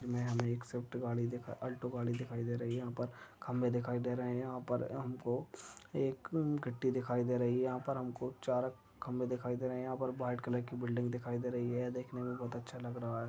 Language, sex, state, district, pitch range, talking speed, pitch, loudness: Hindi, male, Maharashtra, Nagpur, 120-125 Hz, 210 wpm, 125 Hz, -39 LUFS